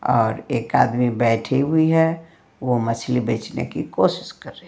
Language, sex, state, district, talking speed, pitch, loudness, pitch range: Hindi, female, Bihar, Patna, 180 wpm, 125 Hz, -20 LUFS, 115-160 Hz